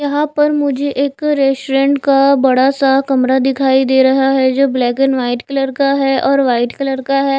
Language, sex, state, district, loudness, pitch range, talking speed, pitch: Hindi, female, Chhattisgarh, Raipur, -13 LUFS, 265-275 Hz, 205 wpm, 270 Hz